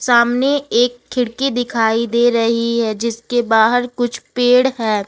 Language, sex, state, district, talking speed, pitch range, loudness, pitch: Hindi, female, Jharkhand, Ranchi, 155 wpm, 230-245 Hz, -16 LUFS, 240 Hz